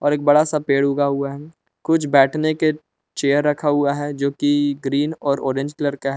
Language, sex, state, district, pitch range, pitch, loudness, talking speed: Hindi, male, Jharkhand, Palamu, 140-150 Hz, 145 Hz, -19 LUFS, 215 wpm